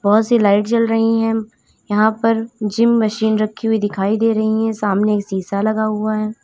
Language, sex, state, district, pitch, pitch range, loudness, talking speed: Hindi, female, Uttar Pradesh, Lalitpur, 220 Hz, 210-225 Hz, -17 LUFS, 205 wpm